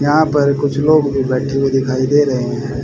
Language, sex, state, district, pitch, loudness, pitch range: Hindi, male, Haryana, Rohtak, 140 Hz, -15 LUFS, 130-145 Hz